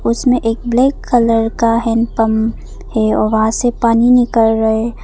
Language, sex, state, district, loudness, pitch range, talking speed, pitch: Hindi, female, Arunachal Pradesh, Papum Pare, -14 LUFS, 225-240 Hz, 165 wpm, 230 Hz